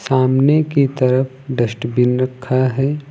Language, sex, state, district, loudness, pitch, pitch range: Hindi, male, Uttar Pradesh, Lucknow, -17 LUFS, 130 Hz, 130-140 Hz